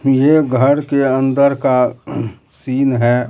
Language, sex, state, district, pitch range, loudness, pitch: Hindi, male, Bihar, Katihar, 130-140 Hz, -15 LUFS, 135 Hz